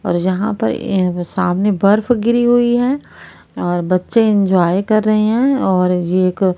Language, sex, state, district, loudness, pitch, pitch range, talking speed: Hindi, female, Haryana, Rohtak, -15 LUFS, 200 Hz, 180-225 Hz, 165 wpm